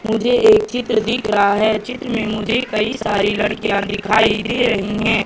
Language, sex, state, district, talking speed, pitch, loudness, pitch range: Hindi, female, Madhya Pradesh, Katni, 180 wpm, 220 Hz, -17 LUFS, 210-235 Hz